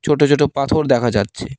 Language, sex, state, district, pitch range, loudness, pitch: Bengali, male, West Bengal, Cooch Behar, 100-145 Hz, -16 LUFS, 140 Hz